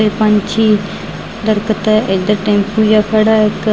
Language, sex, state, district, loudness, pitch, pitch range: Punjabi, female, Punjab, Fazilka, -13 LUFS, 215 Hz, 210-215 Hz